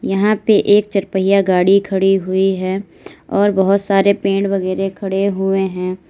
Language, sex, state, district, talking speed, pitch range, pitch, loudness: Hindi, female, Uttar Pradesh, Lalitpur, 155 wpm, 190-200 Hz, 195 Hz, -15 LUFS